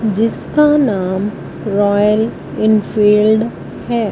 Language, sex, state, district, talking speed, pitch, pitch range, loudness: Hindi, female, Punjab, Fazilka, 75 wpm, 215 Hz, 205-225 Hz, -14 LUFS